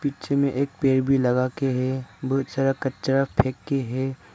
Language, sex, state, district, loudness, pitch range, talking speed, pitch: Hindi, male, Arunachal Pradesh, Lower Dibang Valley, -24 LUFS, 130-135 Hz, 165 wpm, 135 Hz